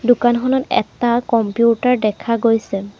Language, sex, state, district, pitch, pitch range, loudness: Assamese, female, Assam, Sonitpur, 235 Hz, 225-245 Hz, -17 LUFS